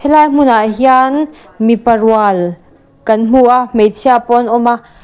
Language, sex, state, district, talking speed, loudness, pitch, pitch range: Mizo, female, Mizoram, Aizawl, 155 wpm, -10 LUFS, 235 Hz, 220-260 Hz